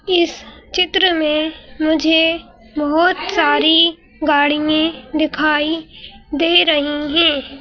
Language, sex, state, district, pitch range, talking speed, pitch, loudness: Hindi, female, Madhya Pradesh, Bhopal, 295-330 Hz, 85 wpm, 310 Hz, -15 LUFS